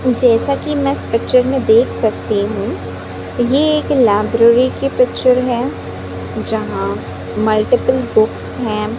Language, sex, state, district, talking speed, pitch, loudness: Hindi, female, Chhattisgarh, Raipur, 125 wpm, 230 Hz, -15 LUFS